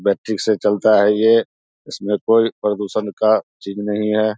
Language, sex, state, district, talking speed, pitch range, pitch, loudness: Hindi, male, Bihar, Vaishali, 165 wpm, 105-110 Hz, 105 Hz, -17 LUFS